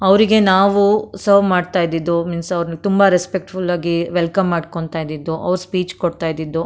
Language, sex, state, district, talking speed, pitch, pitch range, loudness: Kannada, female, Karnataka, Mysore, 160 wpm, 180 Hz, 170-195 Hz, -17 LUFS